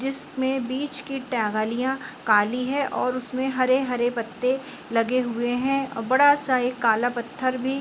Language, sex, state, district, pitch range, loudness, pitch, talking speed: Hindi, female, Uttar Pradesh, Muzaffarnagar, 240-265 Hz, -24 LUFS, 255 Hz, 160 wpm